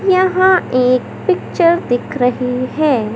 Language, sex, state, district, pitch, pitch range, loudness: Hindi, male, Madhya Pradesh, Katni, 285 Hz, 250-370 Hz, -15 LUFS